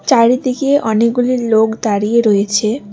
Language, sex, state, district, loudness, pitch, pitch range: Bengali, female, West Bengal, Alipurduar, -14 LUFS, 230 Hz, 215-250 Hz